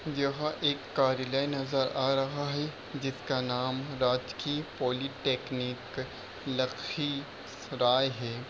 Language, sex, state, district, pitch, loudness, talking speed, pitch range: Hindi, male, Bihar, Lakhisarai, 135 Hz, -31 LUFS, 90 wpm, 130-140 Hz